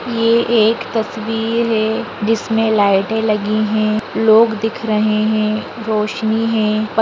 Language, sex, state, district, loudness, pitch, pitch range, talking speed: Hindi, female, Maharashtra, Nagpur, -16 LUFS, 220 Hz, 215-225 Hz, 120 wpm